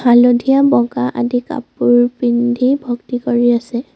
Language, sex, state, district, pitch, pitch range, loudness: Assamese, female, Assam, Sonitpur, 245 Hz, 240-250 Hz, -14 LUFS